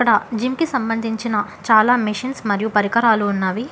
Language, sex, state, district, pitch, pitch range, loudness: Telugu, female, Telangana, Hyderabad, 225 Hz, 210-245 Hz, -18 LUFS